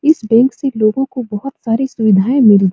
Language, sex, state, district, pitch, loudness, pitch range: Hindi, female, Bihar, Supaul, 235 Hz, -14 LUFS, 215-270 Hz